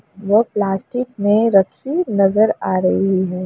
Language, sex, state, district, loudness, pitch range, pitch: Hindi, female, Uttar Pradesh, Jalaun, -17 LUFS, 195-220 Hz, 205 Hz